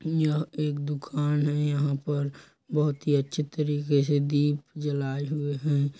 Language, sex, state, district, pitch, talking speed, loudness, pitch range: Hindi, male, Chhattisgarh, Kabirdham, 145 Hz, 150 wpm, -27 LUFS, 145-150 Hz